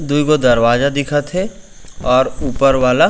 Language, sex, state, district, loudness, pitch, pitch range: Chhattisgarhi, male, Chhattisgarh, Raigarh, -15 LUFS, 140 Hz, 130-150 Hz